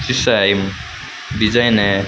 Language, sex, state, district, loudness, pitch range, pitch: Rajasthani, male, Rajasthan, Churu, -15 LUFS, 100-115 Hz, 105 Hz